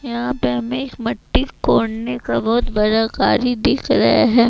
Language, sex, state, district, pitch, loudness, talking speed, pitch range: Hindi, female, Chhattisgarh, Raipur, 235 Hz, -18 LUFS, 160 wpm, 225-250 Hz